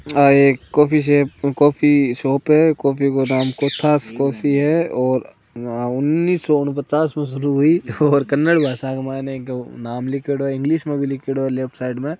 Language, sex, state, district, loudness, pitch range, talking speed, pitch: Hindi, male, Rajasthan, Nagaur, -18 LUFS, 135-150 Hz, 180 wpm, 140 Hz